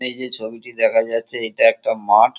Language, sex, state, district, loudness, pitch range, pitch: Bengali, male, West Bengal, Kolkata, -18 LUFS, 115-125 Hz, 115 Hz